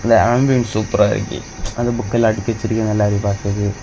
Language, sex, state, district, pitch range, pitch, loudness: Tamil, male, Tamil Nadu, Kanyakumari, 105-115 Hz, 110 Hz, -17 LUFS